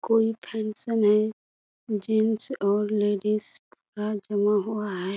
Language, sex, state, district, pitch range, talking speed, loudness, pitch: Hindi, female, Bihar, Kishanganj, 205-220 Hz, 115 wpm, -26 LUFS, 210 Hz